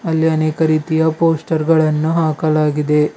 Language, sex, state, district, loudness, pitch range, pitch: Kannada, male, Karnataka, Bidar, -16 LUFS, 155-160 Hz, 160 Hz